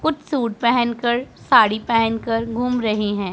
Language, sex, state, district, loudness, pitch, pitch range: Hindi, female, Punjab, Pathankot, -19 LUFS, 235 Hz, 225-245 Hz